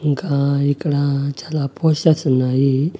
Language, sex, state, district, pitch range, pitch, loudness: Telugu, male, Andhra Pradesh, Annamaya, 140-155 Hz, 140 Hz, -18 LUFS